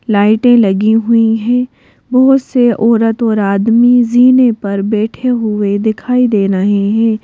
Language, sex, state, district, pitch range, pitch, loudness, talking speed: Hindi, female, Madhya Pradesh, Bhopal, 210-245 Hz, 225 Hz, -11 LUFS, 140 wpm